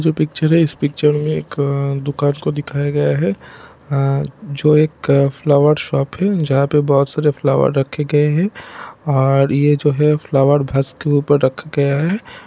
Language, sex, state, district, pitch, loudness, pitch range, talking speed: Hindi, male, Bihar, Supaul, 145 Hz, -16 LUFS, 140-150 Hz, 185 wpm